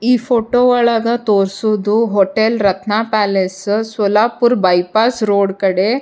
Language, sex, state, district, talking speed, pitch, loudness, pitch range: Kannada, female, Karnataka, Bijapur, 110 wpm, 215 Hz, -14 LUFS, 200-230 Hz